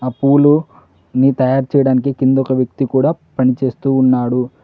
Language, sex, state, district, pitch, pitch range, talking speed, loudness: Telugu, male, Telangana, Mahabubabad, 130 Hz, 130-140 Hz, 140 wpm, -15 LUFS